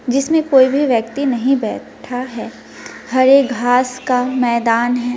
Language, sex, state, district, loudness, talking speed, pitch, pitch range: Hindi, female, West Bengal, Alipurduar, -15 LUFS, 140 wpm, 250 Hz, 245-270 Hz